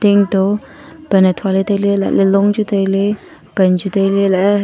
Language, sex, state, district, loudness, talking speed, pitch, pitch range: Wancho, female, Arunachal Pradesh, Longding, -14 LUFS, 155 wpm, 200 Hz, 195-205 Hz